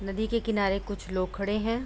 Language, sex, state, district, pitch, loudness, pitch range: Hindi, female, Uttar Pradesh, Budaun, 205 Hz, -29 LUFS, 195-220 Hz